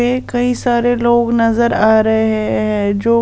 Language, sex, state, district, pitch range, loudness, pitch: Hindi, female, Punjab, Pathankot, 220-240 Hz, -14 LUFS, 235 Hz